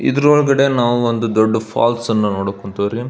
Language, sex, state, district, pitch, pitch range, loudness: Kannada, male, Karnataka, Belgaum, 115 Hz, 110-125 Hz, -16 LUFS